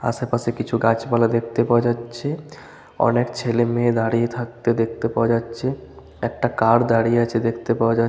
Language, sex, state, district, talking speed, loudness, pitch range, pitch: Bengali, male, West Bengal, Malda, 155 wpm, -21 LUFS, 115-120 Hz, 115 Hz